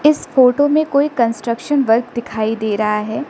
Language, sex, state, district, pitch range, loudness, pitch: Hindi, female, Arunachal Pradesh, Lower Dibang Valley, 220-290 Hz, -16 LUFS, 240 Hz